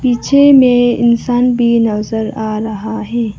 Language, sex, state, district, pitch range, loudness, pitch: Hindi, female, Arunachal Pradesh, Lower Dibang Valley, 220-245 Hz, -12 LUFS, 235 Hz